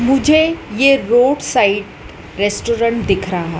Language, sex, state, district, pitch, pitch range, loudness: Hindi, female, Madhya Pradesh, Dhar, 230 Hz, 200-270 Hz, -15 LUFS